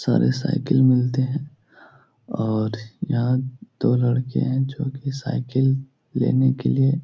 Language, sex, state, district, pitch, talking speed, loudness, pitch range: Hindi, male, Uttar Pradesh, Etah, 130 Hz, 135 wpm, -22 LUFS, 120-135 Hz